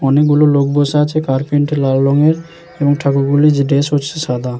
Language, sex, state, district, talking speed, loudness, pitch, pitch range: Bengali, male, West Bengal, Jalpaiguri, 210 wpm, -14 LUFS, 145 Hz, 140-150 Hz